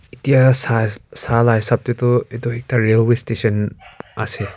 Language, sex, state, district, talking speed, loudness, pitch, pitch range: Nagamese, male, Nagaland, Kohima, 130 wpm, -17 LUFS, 120 Hz, 110-120 Hz